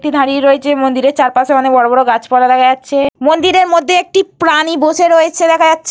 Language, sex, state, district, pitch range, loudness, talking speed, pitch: Bengali, female, Jharkhand, Jamtara, 260-330 Hz, -11 LUFS, 185 wpm, 285 Hz